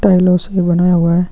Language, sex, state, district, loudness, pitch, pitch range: Hindi, male, Chhattisgarh, Kabirdham, -13 LUFS, 180 Hz, 175-180 Hz